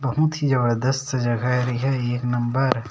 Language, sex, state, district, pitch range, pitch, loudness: Chhattisgarhi, male, Chhattisgarh, Sarguja, 120-135 Hz, 125 Hz, -22 LUFS